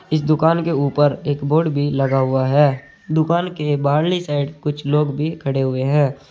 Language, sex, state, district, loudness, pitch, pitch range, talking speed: Hindi, male, Uttar Pradesh, Saharanpur, -18 LUFS, 145 Hz, 140-155 Hz, 190 wpm